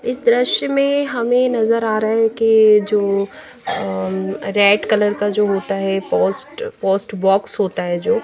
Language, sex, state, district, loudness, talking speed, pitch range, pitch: Hindi, female, Bihar, Patna, -17 LUFS, 170 wpm, 195-235 Hz, 210 Hz